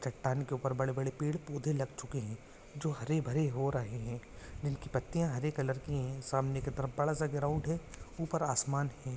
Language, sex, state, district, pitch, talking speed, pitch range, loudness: Hindi, male, Jharkhand, Jamtara, 140 Hz, 205 wpm, 130-150 Hz, -36 LUFS